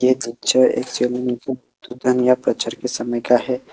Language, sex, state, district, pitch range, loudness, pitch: Hindi, male, Assam, Kamrup Metropolitan, 120-125 Hz, -19 LUFS, 125 Hz